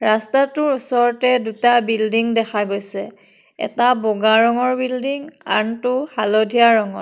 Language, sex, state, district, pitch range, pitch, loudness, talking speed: Assamese, female, Assam, Kamrup Metropolitan, 220-255 Hz, 235 Hz, -18 LUFS, 110 wpm